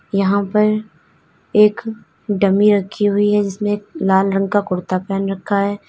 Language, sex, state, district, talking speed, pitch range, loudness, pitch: Hindi, female, Uttar Pradesh, Lalitpur, 155 wpm, 195-205 Hz, -17 LUFS, 200 Hz